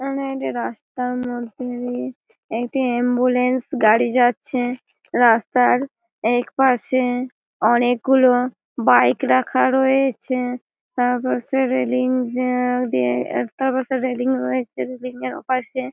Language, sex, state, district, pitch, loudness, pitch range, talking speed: Bengali, female, West Bengal, Malda, 250 Hz, -20 LUFS, 245-260 Hz, 110 wpm